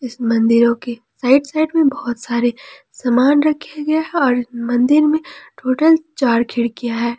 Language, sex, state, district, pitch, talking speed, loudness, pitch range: Hindi, female, Jharkhand, Palamu, 255 Hz, 150 wpm, -16 LUFS, 235-300 Hz